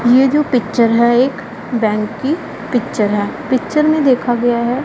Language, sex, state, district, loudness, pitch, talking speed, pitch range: Hindi, female, Punjab, Pathankot, -15 LUFS, 245 Hz, 185 wpm, 235-270 Hz